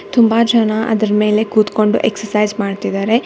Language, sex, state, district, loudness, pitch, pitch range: Kannada, female, Karnataka, Bangalore, -15 LUFS, 215 Hz, 210-225 Hz